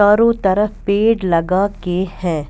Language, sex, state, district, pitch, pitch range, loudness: Hindi, female, Punjab, Kapurthala, 195 Hz, 180-210 Hz, -16 LUFS